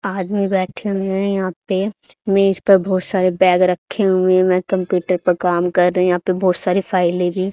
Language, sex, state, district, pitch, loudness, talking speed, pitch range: Hindi, female, Haryana, Charkhi Dadri, 185 Hz, -17 LUFS, 215 wpm, 180-195 Hz